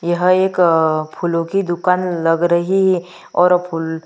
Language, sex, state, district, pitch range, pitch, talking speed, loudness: Hindi, female, Chhattisgarh, Sukma, 165-180 Hz, 175 Hz, 160 wpm, -16 LUFS